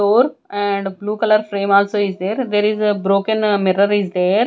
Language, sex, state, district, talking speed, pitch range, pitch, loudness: English, female, Punjab, Kapurthala, 200 wpm, 200-210 Hz, 205 Hz, -17 LUFS